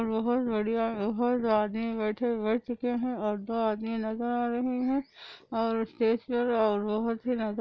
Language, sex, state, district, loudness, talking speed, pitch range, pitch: Hindi, female, Andhra Pradesh, Anantapur, -29 LUFS, 160 wpm, 220-245 Hz, 230 Hz